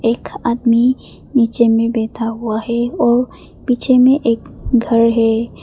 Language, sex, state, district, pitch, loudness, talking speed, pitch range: Hindi, female, Arunachal Pradesh, Papum Pare, 235 Hz, -15 LUFS, 140 wpm, 230-245 Hz